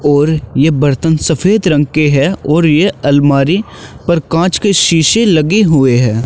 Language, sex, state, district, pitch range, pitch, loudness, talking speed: Hindi, male, Uttar Pradesh, Shamli, 145-180 Hz, 155 Hz, -11 LUFS, 165 wpm